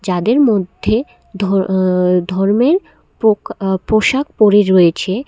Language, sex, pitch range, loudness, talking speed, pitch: Bengali, female, 185-225 Hz, -14 LUFS, 115 wpm, 195 Hz